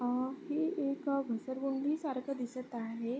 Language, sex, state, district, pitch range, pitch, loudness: Marathi, female, Maharashtra, Sindhudurg, 245-280 Hz, 270 Hz, -36 LUFS